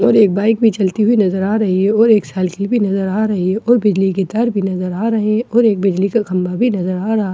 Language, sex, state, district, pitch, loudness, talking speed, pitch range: Hindi, female, Bihar, Katihar, 205 Hz, -15 LUFS, 295 wpm, 190-225 Hz